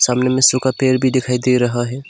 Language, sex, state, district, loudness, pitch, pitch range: Hindi, male, Arunachal Pradesh, Lower Dibang Valley, -15 LUFS, 130 Hz, 125-130 Hz